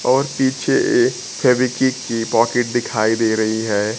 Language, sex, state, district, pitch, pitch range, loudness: Hindi, male, Bihar, Kaimur, 120 Hz, 110-130 Hz, -18 LUFS